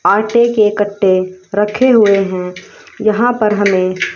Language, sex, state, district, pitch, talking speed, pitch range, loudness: Hindi, female, Haryana, Rohtak, 205 Hz, 130 wpm, 185-215 Hz, -13 LUFS